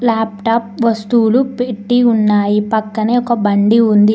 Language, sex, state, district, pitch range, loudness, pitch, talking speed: Telugu, female, Telangana, Mahabubabad, 210-235 Hz, -14 LUFS, 225 Hz, 115 wpm